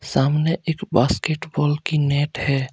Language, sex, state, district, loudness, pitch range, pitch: Hindi, male, Jharkhand, Deoghar, -21 LUFS, 140-160 Hz, 150 Hz